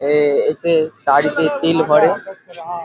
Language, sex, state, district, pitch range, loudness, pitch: Bengali, male, West Bengal, Paschim Medinipur, 150-170 Hz, -16 LUFS, 160 Hz